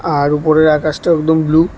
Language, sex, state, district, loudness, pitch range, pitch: Bengali, male, Tripura, West Tripura, -13 LUFS, 150-160 Hz, 155 Hz